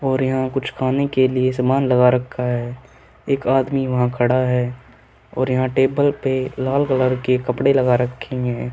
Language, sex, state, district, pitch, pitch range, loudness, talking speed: Hindi, male, Uttarakhand, Tehri Garhwal, 130 Hz, 125-135 Hz, -19 LUFS, 180 wpm